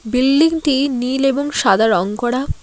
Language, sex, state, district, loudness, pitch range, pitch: Bengali, female, West Bengal, Alipurduar, -16 LUFS, 240-280 Hz, 260 Hz